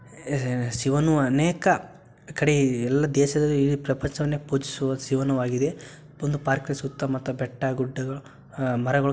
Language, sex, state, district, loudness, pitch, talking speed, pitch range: Kannada, male, Karnataka, Shimoga, -25 LUFS, 140 Hz, 125 wpm, 130-145 Hz